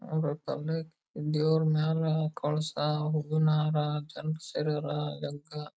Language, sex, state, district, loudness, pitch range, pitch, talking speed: Kannada, male, Karnataka, Belgaum, -30 LUFS, 150-155 Hz, 155 Hz, 85 wpm